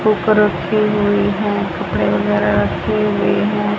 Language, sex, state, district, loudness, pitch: Hindi, male, Haryana, Rohtak, -16 LUFS, 205 Hz